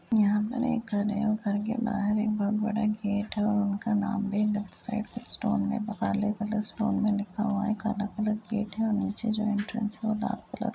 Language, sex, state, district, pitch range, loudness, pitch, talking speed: Hindi, female, Uttar Pradesh, Etah, 205-220 Hz, -29 LUFS, 215 Hz, 225 wpm